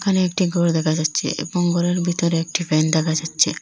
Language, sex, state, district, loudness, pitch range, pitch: Bengali, female, Assam, Hailakandi, -20 LUFS, 160-175 Hz, 170 Hz